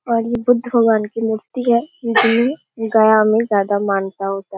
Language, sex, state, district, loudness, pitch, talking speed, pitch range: Hindi, female, Bihar, Darbhanga, -17 LUFS, 225 Hz, 195 wpm, 210-235 Hz